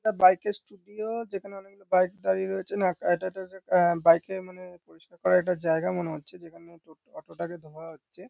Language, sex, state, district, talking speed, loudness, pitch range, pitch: Bengali, male, West Bengal, North 24 Parganas, 190 wpm, -27 LUFS, 170-195 Hz, 185 Hz